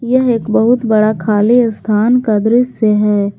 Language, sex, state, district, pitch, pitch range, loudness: Hindi, female, Jharkhand, Garhwa, 220 Hz, 210-240 Hz, -12 LUFS